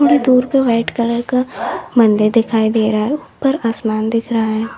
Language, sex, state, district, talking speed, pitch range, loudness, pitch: Hindi, female, Uttar Pradesh, Lalitpur, 200 wpm, 220-255 Hz, -15 LUFS, 230 Hz